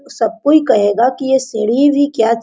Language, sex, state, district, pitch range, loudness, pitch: Hindi, female, Jharkhand, Sahebganj, 225-280 Hz, -13 LUFS, 250 Hz